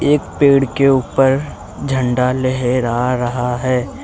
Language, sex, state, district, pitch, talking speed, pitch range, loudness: Hindi, male, Uttar Pradesh, Lucknow, 130 Hz, 120 wpm, 125-135 Hz, -16 LUFS